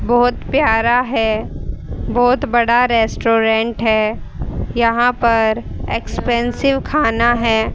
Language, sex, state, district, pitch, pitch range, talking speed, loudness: Hindi, female, Haryana, Rohtak, 235 Hz, 225-245 Hz, 95 wpm, -16 LUFS